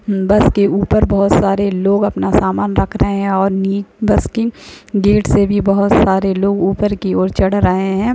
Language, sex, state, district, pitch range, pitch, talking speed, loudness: Hindi, female, Bihar, Jahanabad, 195-205 Hz, 200 Hz, 200 wpm, -14 LUFS